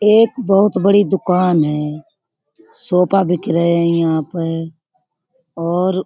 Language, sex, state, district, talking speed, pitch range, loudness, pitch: Hindi, female, Uttar Pradesh, Budaun, 120 wpm, 165-195 Hz, -16 LUFS, 180 Hz